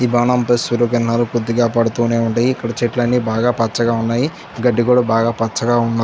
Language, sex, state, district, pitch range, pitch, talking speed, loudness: Telugu, male, Andhra Pradesh, Chittoor, 115-120 Hz, 120 Hz, 170 wpm, -16 LUFS